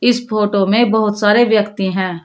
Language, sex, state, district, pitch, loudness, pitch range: Hindi, female, Uttar Pradesh, Shamli, 210 Hz, -14 LUFS, 195-220 Hz